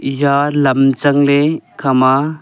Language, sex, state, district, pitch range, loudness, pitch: Wancho, male, Arunachal Pradesh, Longding, 135-145 Hz, -13 LUFS, 140 Hz